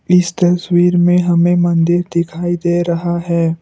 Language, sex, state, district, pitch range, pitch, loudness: Hindi, male, Assam, Kamrup Metropolitan, 170-175 Hz, 175 Hz, -14 LUFS